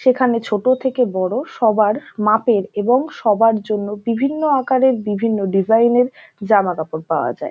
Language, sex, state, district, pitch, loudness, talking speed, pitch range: Bengali, female, West Bengal, North 24 Parganas, 225 Hz, -17 LUFS, 145 wpm, 210-255 Hz